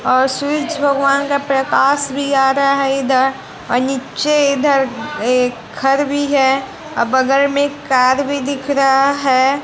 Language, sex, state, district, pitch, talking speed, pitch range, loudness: Hindi, female, Bihar, West Champaran, 275 Hz, 150 wpm, 265-285 Hz, -15 LUFS